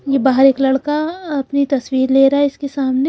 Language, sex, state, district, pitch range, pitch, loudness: Hindi, female, Haryana, Charkhi Dadri, 265-285 Hz, 275 Hz, -15 LUFS